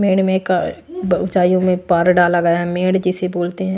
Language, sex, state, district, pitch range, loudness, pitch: Hindi, female, Maharashtra, Washim, 175-190 Hz, -16 LUFS, 180 Hz